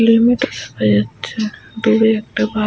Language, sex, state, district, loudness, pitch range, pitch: Bengali, female, West Bengal, Malda, -17 LUFS, 210-230 Hz, 220 Hz